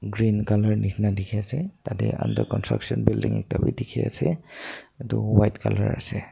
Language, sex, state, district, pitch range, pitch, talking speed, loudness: Nagamese, male, Nagaland, Dimapur, 105-125 Hz, 110 Hz, 140 wpm, -25 LUFS